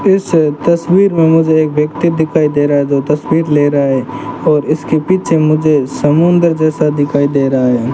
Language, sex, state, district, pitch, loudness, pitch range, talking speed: Hindi, male, Rajasthan, Bikaner, 155 Hz, -12 LUFS, 145-165 Hz, 190 wpm